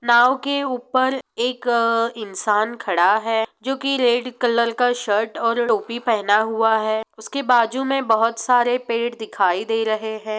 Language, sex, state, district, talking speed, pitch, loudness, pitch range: Hindi, female, Bihar, Sitamarhi, 160 wpm, 230 Hz, -20 LUFS, 220-250 Hz